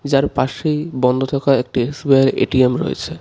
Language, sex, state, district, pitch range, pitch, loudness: Bengali, male, West Bengal, Darjeeling, 130-140 Hz, 135 Hz, -17 LUFS